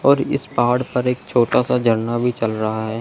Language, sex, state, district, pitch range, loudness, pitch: Hindi, male, Chandigarh, Chandigarh, 115-125 Hz, -19 LUFS, 120 Hz